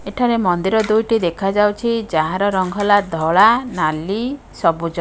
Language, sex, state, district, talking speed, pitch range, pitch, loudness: Odia, female, Odisha, Khordha, 120 wpm, 175-225 Hz, 205 Hz, -17 LUFS